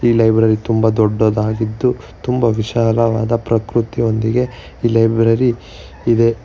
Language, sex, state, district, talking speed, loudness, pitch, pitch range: Kannada, male, Karnataka, Bangalore, 85 wpm, -16 LUFS, 115 Hz, 110-115 Hz